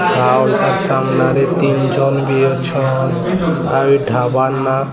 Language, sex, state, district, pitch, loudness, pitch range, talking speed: Odia, male, Odisha, Sambalpur, 135 Hz, -15 LUFS, 135-140 Hz, 145 wpm